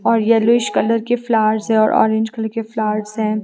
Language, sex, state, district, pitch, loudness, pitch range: Hindi, female, Himachal Pradesh, Shimla, 220 Hz, -17 LUFS, 215-230 Hz